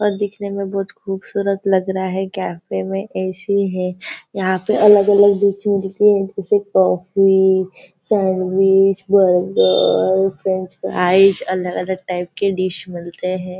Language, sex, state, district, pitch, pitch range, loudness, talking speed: Hindi, female, Maharashtra, Nagpur, 190 Hz, 185-200 Hz, -17 LUFS, 130 wpm